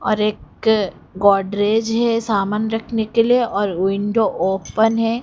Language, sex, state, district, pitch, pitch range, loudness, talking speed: Hindi, female, Odisha, Khordha, 220 Hz, 200-225 Hz, -18 LUFS, 140 wpm